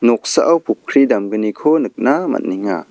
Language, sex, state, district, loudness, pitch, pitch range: Garo, male, Meghalaya, West Garo Hills, -16 LUFS, 120 Hz, 105-150 Hz